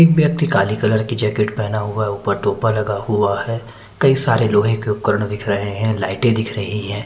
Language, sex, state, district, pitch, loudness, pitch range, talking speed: Hindi, male, Chandigarh, Chandigarh, 105 Hz, -18 LUFS, 105-115 Hz, 220 wpm